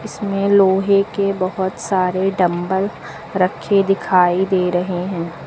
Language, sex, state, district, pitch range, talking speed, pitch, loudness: Hindi, female, Uttar Pradesh, Lucknow, 180-195 Hz, 120 wpm, 190 Hz, -17 LUFS